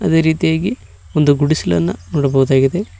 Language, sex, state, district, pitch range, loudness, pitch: Kannada, male, Karnataka, Koppal, 135-160 Hz, -15 LUFS, 145 Hz